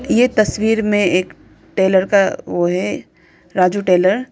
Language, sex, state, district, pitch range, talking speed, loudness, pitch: Hindi, female, Arunachal Pradesh, Lower Dibang Valley, 185-215 Hz, 155 wpm, -16 LUFS, 195 Hz